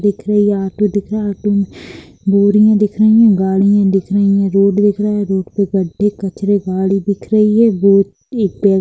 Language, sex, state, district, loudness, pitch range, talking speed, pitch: Hindi, female, Bihar, East Champaran, -14 LUFS, 195-210 Hz, 225 wpm, 200 Hz